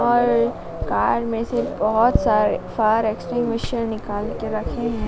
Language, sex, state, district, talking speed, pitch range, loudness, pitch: Hindi, female, Madhya Pradesh, Dhar, 140 wpm, 210-235 Hz, -21 LUFS, 220 Hz